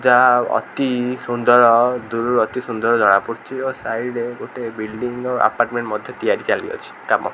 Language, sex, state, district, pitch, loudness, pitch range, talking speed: Odia, male, Odisha, Khordha, 120 Hz, -18 LUFS, 115-125 Hz, 145 wpm